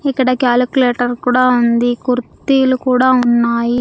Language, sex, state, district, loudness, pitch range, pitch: Telugu, female, Andhra Pradesh, Sri Satya Sai, -14 LUFS, 245-255 Hz, 250 Hz